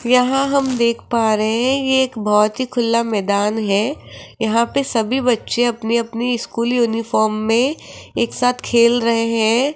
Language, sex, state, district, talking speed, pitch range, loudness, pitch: Hindi, female, Rajasthan, Jaipur, 165 wpm, 220-250 Hz, -17 LUFS, 235 Hz